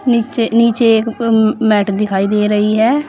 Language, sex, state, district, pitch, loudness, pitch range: Hindi, female, Uttar Pradesh, Saharanpur, 225 Hz, -13 LUFS, 210-230 Hz